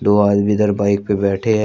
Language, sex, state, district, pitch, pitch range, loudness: Hindi, male, Uttar Pradesh, Shamli, 100 Hz, 100-105 Hz, -16 LUFS